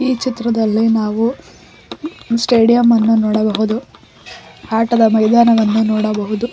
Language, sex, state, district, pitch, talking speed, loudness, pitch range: Kannada, female, Karnataka, Koppal, 225 Hz, 85 wpm, -14 LUFS, 215-235 Hz